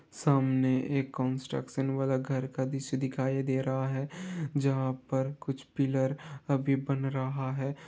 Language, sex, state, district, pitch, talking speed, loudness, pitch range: Hindi, male, Bihar, Gopalganj, 135 Hz, 145 wpm, -31 LUFS, 130-140 Hz